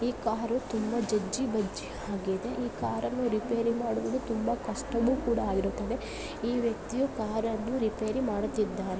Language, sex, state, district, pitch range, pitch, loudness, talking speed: Kannada, female, Karnataka, Bellary, 215-245 Hz, 230 Hz, -31 LUFS, 120 wpm